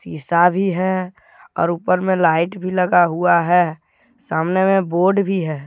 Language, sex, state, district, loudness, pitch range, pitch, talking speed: Hindi, male, Jharkhand, Deoghar, -17 LUFS, 170-190 Hz, 180 Hz, 170 wpm